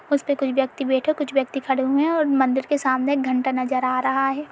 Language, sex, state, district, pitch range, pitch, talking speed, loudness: Hindi, female, Uttar Pradesh, Etah, 265-285 Hz, 270 Hz, 265 wpm, -21 LUFS